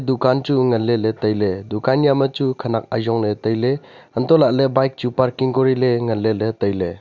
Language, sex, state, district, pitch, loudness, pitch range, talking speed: Wancho, male, Arunachal Pradesh, Longding, 125 Hz, -19 LUFS, 110-130 Hz, 170 wpm